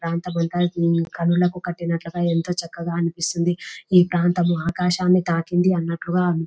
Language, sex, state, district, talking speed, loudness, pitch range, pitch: Telugu, female, Telangana, Nalgonda, 110 wpm, -21 LUFS, 170-180 Hz, 175 Hz